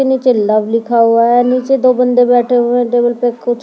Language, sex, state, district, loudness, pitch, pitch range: Hindi, female, Delhi, New Delhi, -12 LUFS, 245 Hz, 235-250 Hz